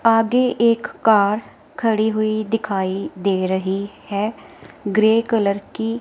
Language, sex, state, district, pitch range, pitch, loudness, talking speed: Hindi, female, Himachal Pradesh, Shimla, 200-225 Hz, 215 Hz, -19 LUFS, 120 wpm